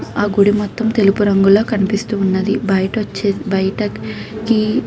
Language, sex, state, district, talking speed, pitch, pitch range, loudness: Telugu, female, Andhra Pradesh, Krishna, 135 wpm, 205 Hz, 195-215 Hz, -16 LUFS